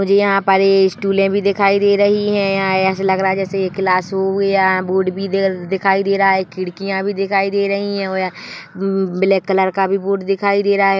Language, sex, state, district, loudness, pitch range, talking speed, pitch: Hindi, female, Chhattisgarh, Bilaspur, -16 LUFS, 190-195 Hz, 235 wpm, 195 Hz